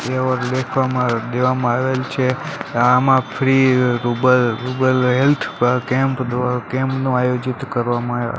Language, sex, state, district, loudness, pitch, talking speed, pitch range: Gujarati, male, Gujarat, Gandhinagar, -18 LUFS, 130 Hz, 100 wpm, 125-130 Hz